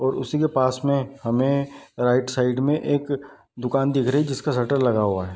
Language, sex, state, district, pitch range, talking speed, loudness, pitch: Hindi, male, Bihar, East Champaran, 125-140 Hz, 215 wpm, -22 LUFS, 135 Hz